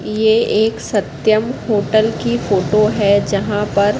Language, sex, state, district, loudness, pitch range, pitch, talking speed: Hindi, female, Madhya Pradesh, Katni, -16 LUFS, 205-220 Hz, 215 Hz, 135 wpm